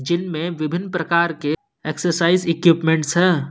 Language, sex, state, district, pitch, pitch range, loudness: Hindi, male, Jharkhand, Ranchi, 170 Hz, 160-175 Hz, -19 LUFS